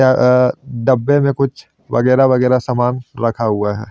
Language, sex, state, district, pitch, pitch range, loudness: Hindi, male, Chandigarh, Chandigarh, 125 Hz, 120-130 Hz, -15 LUFS